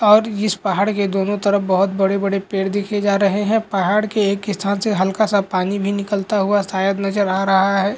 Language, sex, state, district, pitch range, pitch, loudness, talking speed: Hindi, male, Bihar, Lakhisarai, 195-205 Hz, 200 Hz, -18 LUFS, 220 wpm